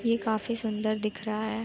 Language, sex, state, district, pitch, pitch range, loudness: Hindi, female, Uttar Pradesh, Etah, 220 Hz, 215-230 Hz, -30 LUFS